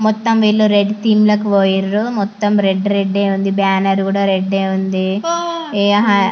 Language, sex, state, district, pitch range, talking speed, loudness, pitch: Telugu, female, Andhra Pradesh, Anantapur, 195-215 Hz, 125 wpm, -15 LUFS, 200 Hz